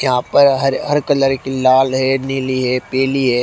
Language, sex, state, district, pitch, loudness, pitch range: Hindi, male, Haryana, Rohtak, 135 Hz, -15 LUFS, 130-135 Hz